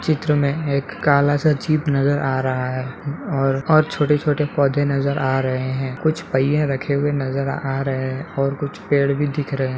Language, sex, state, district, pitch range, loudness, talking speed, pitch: Hindi, male, Uttar Pradesh, Hamirpur, 135-145 Hz, -20 LUFS, 215 wpm, 140 Hz